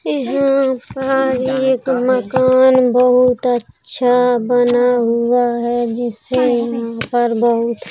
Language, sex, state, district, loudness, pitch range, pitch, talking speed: Hindi, female, Uttar Pradesh, Jalaun, -15 LUFS, 240-260 Hz, 245 Hz, 105 wpm